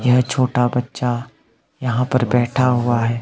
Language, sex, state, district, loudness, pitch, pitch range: Hindi, male, Himachal Pradesh, Shimla, -19 LUFS, 125 Hz, 120-125 Hz